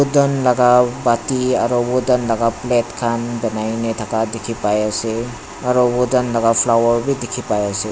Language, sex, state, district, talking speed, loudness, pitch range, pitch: Nagamese, male, Nagaland, Dimapur, 135 wpm, -17 LUFS, 115-125 Hz, 120 Hz